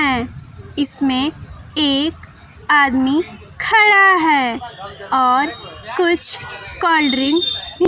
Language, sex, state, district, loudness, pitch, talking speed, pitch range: Hindi, female, Bihar, West Champaran, -15 LUFS, 290 Hz, 75 wpm, 265-335 Hz